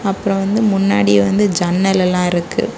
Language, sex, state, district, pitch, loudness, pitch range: Tamil, female, Tamil Nadu, Kanyakumari, 190 Hz, -15 LUFS, 175-195 Hz